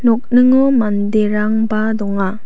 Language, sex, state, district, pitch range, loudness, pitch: Garo, female, Meghalaya, South Garo Hills, 210-240 Hz, -14 LUFS, 215 Hz